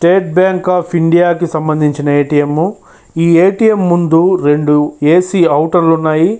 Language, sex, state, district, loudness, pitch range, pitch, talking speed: Telugu, male, Andhra Pradesh, Chittoor, -11 LUFS, 155-180 Hz, 170 Hz, 130 wpm